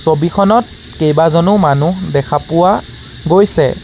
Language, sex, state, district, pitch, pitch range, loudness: Assamese, male, Assam, Sonitpur, 170 Hz, 155-195 Hz, -12 LUFS